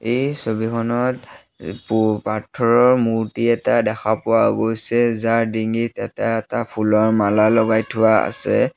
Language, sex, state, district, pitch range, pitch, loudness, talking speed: Assamese, male, Assam, Sonitpur, 110-115 Hz, 115 Hz, -18 LUFS, 125 wpm